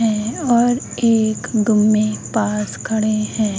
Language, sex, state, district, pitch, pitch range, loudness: Hindi, female, Bihar, Begusarai, 215 Hz, 215-230 Hz, -18 LUFS